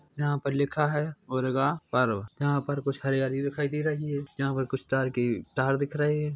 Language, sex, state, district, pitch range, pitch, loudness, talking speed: Hindi, male, Chhattisgarh, Korba, 135-145 Hz, 140 Hz, -28 LUFS, 215 wpm